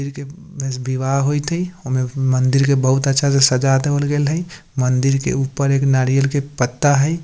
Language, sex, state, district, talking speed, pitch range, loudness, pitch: Bajjika, male, Bihar, Vaishali, 190 wpm, 130-145 Hz, -18 LUFS, 135 Hz